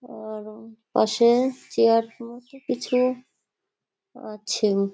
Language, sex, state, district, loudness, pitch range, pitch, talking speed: Bengali, female, West Bengal, Kolkata, -23 LUFS, 215-250 Hz, 235 Hz, 75 wpm